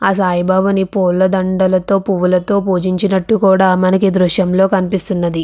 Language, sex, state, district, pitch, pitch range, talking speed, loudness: Telugu, female, Andhra Pradesh, Visakhapatnam, 190 Hz, 185-195 Hz, 110 wpm, -14 LUFS